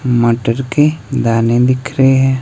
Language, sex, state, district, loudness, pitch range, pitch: Hindi, male, Himachal Pradesh, Shimla, -13 LUFS, 120-135 Hz, 130 Hz